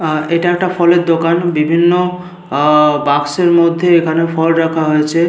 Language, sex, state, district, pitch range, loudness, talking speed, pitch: Bengali, male, West Bengal, Paschim Medinipur, 155-175 Hz, -12 LUFS, 160 wpm, 165 Hz